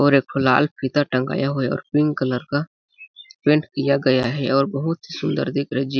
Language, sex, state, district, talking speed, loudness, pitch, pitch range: Hindi, male, Chhattisgarh, Balrampur, 250 wpm, -21 LUFS, 140 Hz, 135-150 Hz